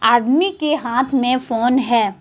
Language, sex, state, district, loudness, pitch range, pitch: Hindi, female, Jharkhand, Deoghar, -17 LUFS, 240-275 Hz, 255 Hz